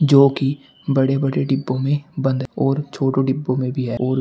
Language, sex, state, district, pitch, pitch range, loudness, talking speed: Hindi, male, Uttar Pradesh, Shamli, 135 Hz, 130-140 Hz, -20 LUFS, 225 wpm